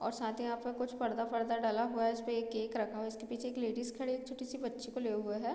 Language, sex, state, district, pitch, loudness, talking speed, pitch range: Hindi, female, Bihar, Muzaffarpur, 235 Hz, -38 LUFS, 325 wpm, 225-245 Hz